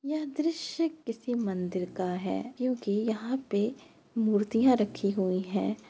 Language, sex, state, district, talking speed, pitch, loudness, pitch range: Hindi, female, Uttar Pradesh, Etah, 130 wpm, 225 Hz, -30 LUFS, 200-260 Hz